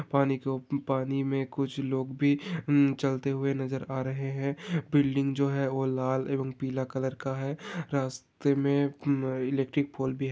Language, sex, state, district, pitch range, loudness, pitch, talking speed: Hindi, male, Maharashtra, Pune, 130-140 Hz, -30 LUFS, 135 Hz, 185 wpm